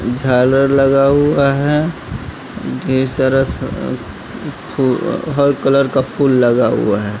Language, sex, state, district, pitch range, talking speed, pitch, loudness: Hindi, male, Bihar, West Champaran, 130-140 Hz, 110 wpm, 135 Hz, -14 LUFS